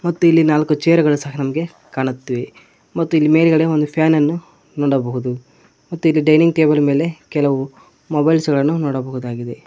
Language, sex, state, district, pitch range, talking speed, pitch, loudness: Kannada, male, Karnataka, Koppal, 135-160 Hz, 150 wpm, 150 Hz, -16 LUFS